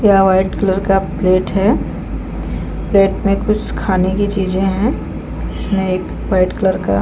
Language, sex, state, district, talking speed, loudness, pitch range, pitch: Hindi, female, Chhattisgarh, Balrampur, 155 wpm, -16 LUFS, 190-200 Hz, 195 Hz